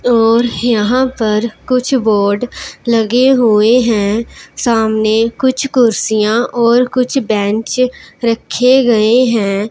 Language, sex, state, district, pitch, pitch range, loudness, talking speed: Hindi, male, Punjab, Pathankot, 235 Hz, 220-250 Hz, -13 LUFS, 105 wpm